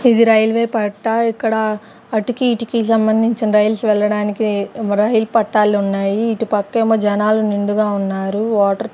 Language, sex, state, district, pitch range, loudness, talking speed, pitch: Telugu, female, Andhra Pradesh, Sri Satya Sai, 210-225 Hz, -16 LUFS, 135 wpm, 220 Hz